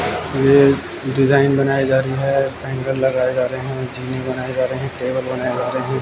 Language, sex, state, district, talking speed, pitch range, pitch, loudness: Hindi, male, Haryana, Jhajjar, 190 wpm, 130-135 Hz, 130 Hz, -18 LUFS